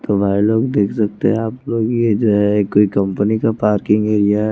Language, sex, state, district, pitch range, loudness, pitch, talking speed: Hindi, male, Chandigarh, Chandigarh, 105-110 Hz, -16 LUFS, 105 Hz, 225 wpm